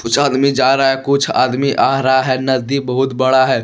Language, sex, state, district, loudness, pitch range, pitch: Hindi, male, Jharkhand, Deoghar, -14 LUFS, 130-140 Hz, 130 Hz